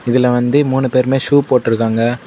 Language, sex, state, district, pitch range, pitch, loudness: Tamil, male, Tamil Nadu, Kanyakumari, 120-135 Hz, 125 Hz, -14 LUFS